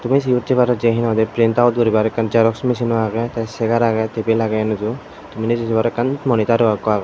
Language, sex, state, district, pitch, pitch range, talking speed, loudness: Chakma, male, Tripura, Dhalai, 115 Hz, 110-120 Hz, 205 wpm, -17 LUFS